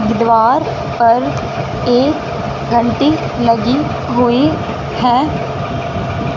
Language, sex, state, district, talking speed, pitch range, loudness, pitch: Hindi, female, Punjab, Fazilka, 65 wpm, 230-245 Hz, -14 LUFS, 240 Hz